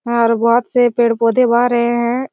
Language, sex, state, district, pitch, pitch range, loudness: Hindi, female, Chhattisgarh, Raigarh, 235 Hz, 235-245 Hz, -14 LUFS